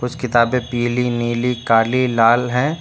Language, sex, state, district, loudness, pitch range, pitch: Hindi, male, Uttar Pradesh, Lucknow, -17 LUFS, 120-125 Hz, 120 Hz